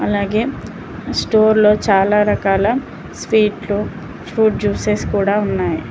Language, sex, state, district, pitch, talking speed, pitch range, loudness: Telugu, female, Telangana, Mahabubabad, 210 Hz, 110 wpm, 200-215 Hz, -16 LUFS